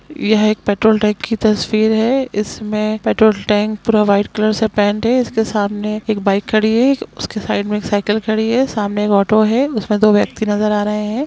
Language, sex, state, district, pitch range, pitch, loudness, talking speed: Hindi, female, Bihar, Jamui, 210-220 Hz, 215 Hz, -16 LUFS, 220 wpm